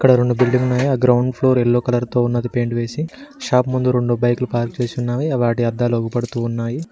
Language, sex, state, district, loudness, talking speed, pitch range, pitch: Telugu, male, Telangana, Mahabubabad, -18 LUFS, 190 wpm, 120-125 Hz, 125 Hz